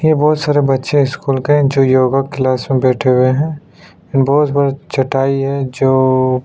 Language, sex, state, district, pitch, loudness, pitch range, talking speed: Hindi, male, Chhattisgarh, Sukma, 135 Hz, -14 LUFS, 130-145 Hz, 175 wpm